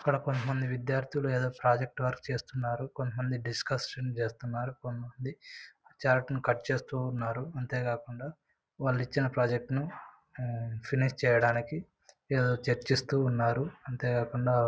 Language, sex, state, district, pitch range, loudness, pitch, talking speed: Telugu, male, Andhra Pradesh, Anantapur, 120-135 Hz, -32 LUFS, 125 Hz, 125 wpm